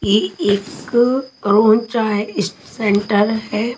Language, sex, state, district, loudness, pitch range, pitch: Hindi, female, Haryana, Charkhi Dadri, -17 LUFS, 205-230 Hz, 215 Hz